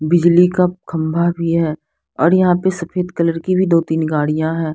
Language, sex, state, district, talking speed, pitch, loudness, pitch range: Hindi, female, Bihar, Patna, 200 wpm, 170 Hz, -16 LUFS, 160-180 Hz